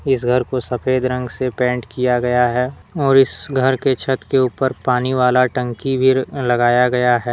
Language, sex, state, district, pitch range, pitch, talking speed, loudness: Hindi, male, Jharkhand, Deoghar, 125-130 Hz, 125 Hz, 195 wpm, -17 LUFS